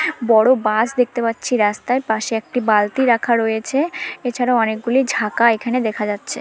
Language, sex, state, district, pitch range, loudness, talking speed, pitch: Bengali, female, West Bengal, Malda, 220-250 Hz, -18 LUFS, 150 wpm, 235 Hz